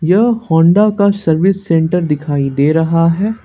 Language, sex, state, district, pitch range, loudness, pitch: Hindi, male, Jharkhand, Ranchi, 160-200 Hz, -13 LUFS, 170 Hz